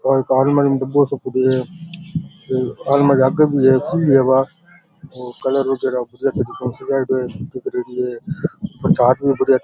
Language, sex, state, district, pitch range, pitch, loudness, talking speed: Rajasthani, male, Rajasthan, Churu, 130-140 Hz, 135 Hz, -18 LUFS, 110 wpm